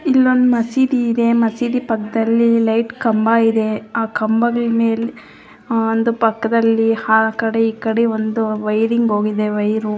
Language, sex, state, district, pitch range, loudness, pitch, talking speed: Kannada, female, Karnataka, Mysore, 220-235 Hz, -16 LUFS, 225 Hz, 130 wpm